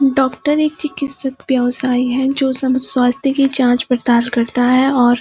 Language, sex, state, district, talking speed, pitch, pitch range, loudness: Hindi, female, Uttarakhand, Uttarkashi, 175 wpm, 260 Hz, 250-275 Hz, -15 LUFS